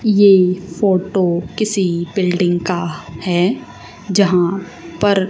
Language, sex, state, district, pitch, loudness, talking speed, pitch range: Hindi, female, Haryana, Charkhi Dadri, 185 Hz, -16 LUFS, 90 wpm, 175-200 Hz